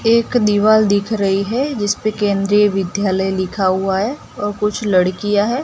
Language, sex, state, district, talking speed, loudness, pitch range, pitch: Hindi, female, Gujarat, Gandhinagar, 160 wpm, -16 LUFS, 195-215 Hz, 205 Hz